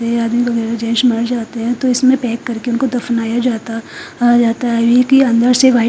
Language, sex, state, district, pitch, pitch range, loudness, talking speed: Hindi, female, Punjab, Fazilka, 240 Hz, 230-245 Hz, -14 LUFS, 195 wpm